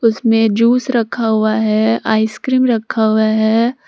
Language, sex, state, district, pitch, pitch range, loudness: Hindi, female, Jharkhand, Palamu, 225 Hz, 220-235 Hz, -14 LUFS